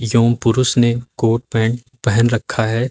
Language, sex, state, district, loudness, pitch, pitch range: Hindi, male, Uttar Pradesh, Lucknow, -17 LUFS, 120 Hz, 115-120 Hz